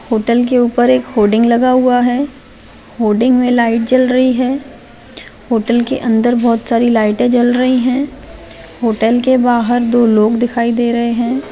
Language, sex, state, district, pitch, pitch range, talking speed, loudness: Hindi, female, Bihar, Jahanabad, 240 Hz, 235-255 Hz, 165 wpm, -13 LUFS